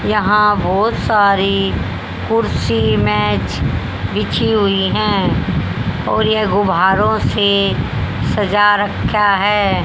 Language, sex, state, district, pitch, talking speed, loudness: Hindi, male, Haryana, Jhajjar, 195 Hz, 90 wpm, -15 LUFS